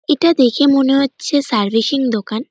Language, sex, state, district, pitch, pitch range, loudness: Bengali, male, West Bengal, North 24 Parganas, 270 Hz, 225-285 Hz, -15 LUFS